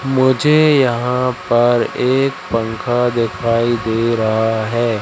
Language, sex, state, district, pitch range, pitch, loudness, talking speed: Hindi, male, Madhya Pradesh, Katni, 115-125 Hz, 120 Hz, -15 LUFS, 105 wpm